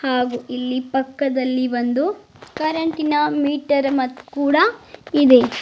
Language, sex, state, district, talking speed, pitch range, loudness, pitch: Kannada, female, Karnataka, Bidar, 95 wpm, 255-300 Hz, -19 LUFS, 275 Hz